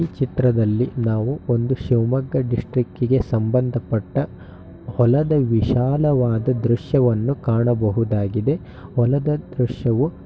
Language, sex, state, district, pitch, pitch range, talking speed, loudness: Kannada, male, Karnataka, Shimoga, 125 Hz, 115-135 Hz, 75 wpm, -20 LUFS